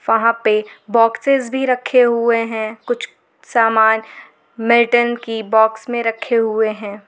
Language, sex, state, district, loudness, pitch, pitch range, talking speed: Hindi, female, Jharkhand, Garhwa, -16 LUFS, 230 Hz, 220-240 Hz, 135 wpm